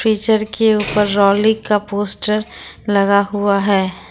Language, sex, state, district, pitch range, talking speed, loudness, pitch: Hindi, female, Jharkhand, Ranchi, 200-215 Hz, 130 wpm, -16 LUFS, 205 Hz